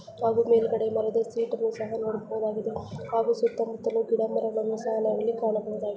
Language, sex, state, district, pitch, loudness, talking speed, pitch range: Kannada, female, Karnataka, Bijapur, 225 Hz, -27 LUFS, 140 wpm, 220-230 Hz